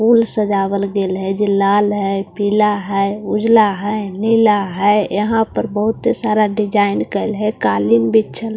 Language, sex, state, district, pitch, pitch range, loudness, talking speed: Hindi, female, Bihar, Katihar, 205 Hz, 200-215 Hz, -16 LUFS, 170 wpm